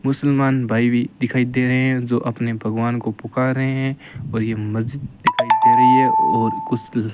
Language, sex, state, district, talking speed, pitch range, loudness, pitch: Hindi, male, Rajasthan, Bikaner, 210 wpm, 115-135 Hz, -19 LUFS, 125 Hz